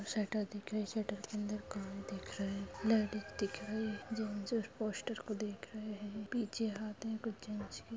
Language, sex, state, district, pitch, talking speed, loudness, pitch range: Hindi, female, Chhattisgarh, Kabirdham, 210 Hz, 190 wpm, -40 LUFS, 205-220 Hz